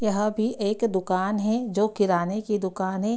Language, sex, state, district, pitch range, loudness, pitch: Hindi, female, Bihar, Darbhanga, 190-215 Hz, -25 LUFS, 210 Hz